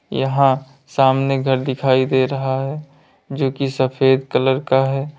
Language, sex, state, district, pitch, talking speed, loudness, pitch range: Hindi, male, Uttar Pradesh, Lalitpur, 135 Hz, 150 wpm, -18 LUFS, 130-135 Hz